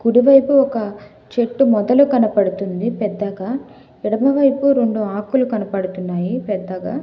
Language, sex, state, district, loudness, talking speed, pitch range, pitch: Telugu, female, Telangana, Hyderabad, -17 LUFS, 95 wpm, 200-260 Hz, 225 Hz